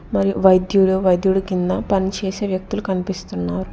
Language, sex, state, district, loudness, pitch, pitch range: Telugu, female, Telangana, Hyderabad, -19 LUFS, 190 Hz, 180-195 Hz